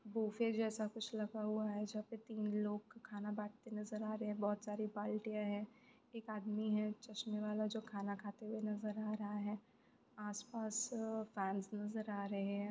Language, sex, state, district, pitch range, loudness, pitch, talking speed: Hindi, female, West Bengal, Purulia, 210-220 Hz, -43 LUFS, 215 Hz, 180 wpm